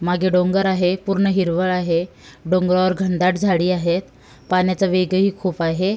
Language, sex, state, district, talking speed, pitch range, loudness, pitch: Marathi, female, Maharashtra, Sindhudurg, 140 wpm, 175-190 Hz, -19 LUFS, 185 Hz